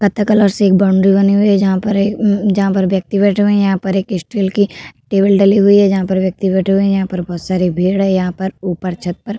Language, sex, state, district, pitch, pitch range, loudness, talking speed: Hindi, female, Uttar Pradesh, Hamirpur, 195 Hz, 190-200 Hz, -14 LUFS, 290 wpm